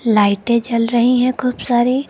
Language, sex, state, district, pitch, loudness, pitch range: Hindi, female, Uttar Pradesh, Lucknow, 240 Hz, -16 LUFS, 230-250 Hz